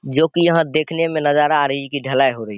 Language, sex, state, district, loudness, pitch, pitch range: Hindi, male, Bihar, Saharsa, -16 LUFS, 150 Hz, 135-160 Hz